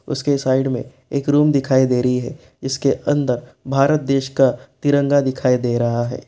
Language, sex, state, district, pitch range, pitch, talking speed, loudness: Hindi, male, Bihar, East Champaran, 125-140 Hz, 135 Hz, 180 wpm, -18 LUFS